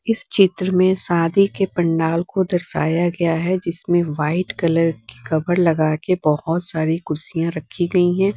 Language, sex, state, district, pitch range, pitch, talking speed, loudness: Hindi, female, Bihar, West Champaran, 160-185 Hz, 170 Hz, 160 wpm, -19 LUFS